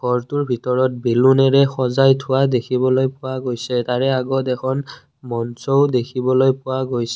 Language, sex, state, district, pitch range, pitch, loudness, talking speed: Assamese, male, Assam, Kamrup Metropolitan, 125-135 Hz, 130 Hz, -18 LUFS, 125 wpm